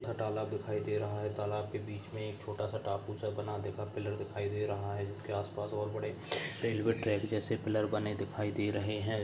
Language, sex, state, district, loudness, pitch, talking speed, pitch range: Hindi, male, Maharashtra, Sindhudurg, -36 LUFS, 105 Hz, 220 wpm, 105-110 Hz